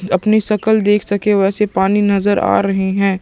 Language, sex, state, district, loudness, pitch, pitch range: Hindi, male, Chhattisgarh, Sukma, -15 LUFS, 205 Hz, 195-210 Hz